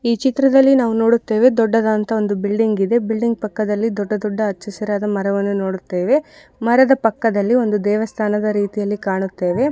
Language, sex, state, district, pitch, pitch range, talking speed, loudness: Kannada, female, Karnataka, Dakshina Kannada, 215 Hz, 205-230 Hz, 135 wpm, -17 LUFS